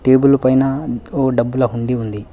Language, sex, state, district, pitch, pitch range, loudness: Telugu, male, Telangana, Hyderabad, 130 Hz, 115-135 Hz, -16 LUFS